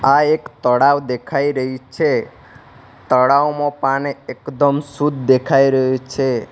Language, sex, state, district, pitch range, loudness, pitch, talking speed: Gujarati, male, Gujarat, Valsad, 130-145 Hz, -17 LUFS, 135 Hz, 120 wpm